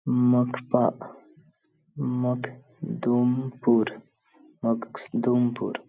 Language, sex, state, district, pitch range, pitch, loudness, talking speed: Hindi, male, Bihar, Jahanabad, 120-125 Hz, 125 Hz, -26 LUFS, 60 wpm